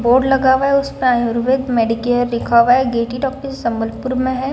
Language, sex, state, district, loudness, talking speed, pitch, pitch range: Hindi, female, Odisha, Sambalpur, -16 LUFS, 200 wpm, 250 Hz, 235-265 Hz